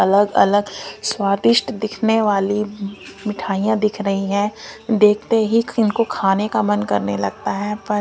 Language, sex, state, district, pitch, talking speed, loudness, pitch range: Hindi, female, Punjab, Kapurthala, 205 Hz, 140 wpm, -18 LUFS, 195-220 Hz